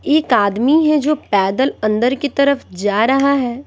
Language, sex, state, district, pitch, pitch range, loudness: Hindi, female, Bihar, Patna, 265 Hz, 215-285 Hz, -15 LUFS